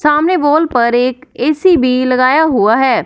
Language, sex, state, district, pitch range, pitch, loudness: Hindi, female, Punjab, Fazilka, 255-315 Hz, 290 Hz, -12 LUFS